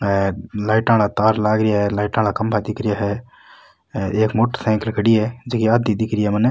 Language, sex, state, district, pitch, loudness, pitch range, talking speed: Rajasthani, male, Rajasthan, Nagaur, 110 Hz, -19 LUFS, 105-110 Hz, 195 wpm